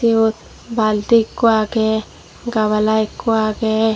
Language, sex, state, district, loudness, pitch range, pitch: Chakma, female, Tripura, Dhalai, -17 LUFS, 215-225 Hz, 220 Hz